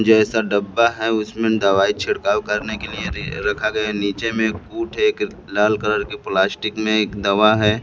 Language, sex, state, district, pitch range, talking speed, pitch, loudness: Hindi, male, Bihar, Kaimur, 105-110 Hz, 200 wpm, 110 Hz, -19 LUFS